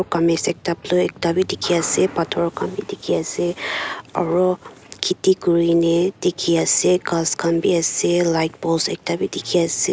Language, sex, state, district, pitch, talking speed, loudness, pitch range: Nagamese, female, Nagaland, Kohima, 170 Hz, 165 wpm, -20 LUFS, 165-180 Hz